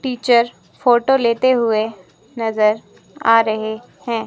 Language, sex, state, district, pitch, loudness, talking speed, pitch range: Hindi, female, Himachal Pradesh, Shimla, 230 Hz, -17 LUFS, 110 wpm, 220-245 Hz